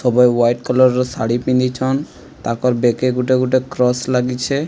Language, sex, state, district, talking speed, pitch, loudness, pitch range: Odia, male, Odisha, Sambalpur, 155 wpm, 125 Hz, -16 LUFS, 125-130 Hz